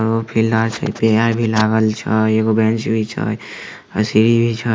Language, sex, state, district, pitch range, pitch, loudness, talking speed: Maithili, male, Bihar, Samastipur, 110-115 Hz, 110 Hz, -17 LUFS, 140 wpm